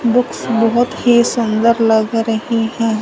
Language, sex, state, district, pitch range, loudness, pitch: Hindi, male, Punjab, Fazilka, 225-235 Hz, -15 LUFS, 230 Hz